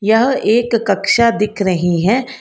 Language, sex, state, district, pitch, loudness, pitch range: Hindi, female, Karnataka, Bangalore, 220 Hz, -14 LUFS, 195-235 Hz